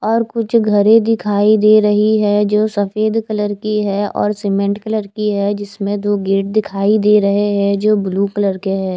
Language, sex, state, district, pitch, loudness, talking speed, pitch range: Hindi, female, Chandigarh, Chandigarh, 205 Hz, -15 LUFS, 195 wpm, 200-215 Hz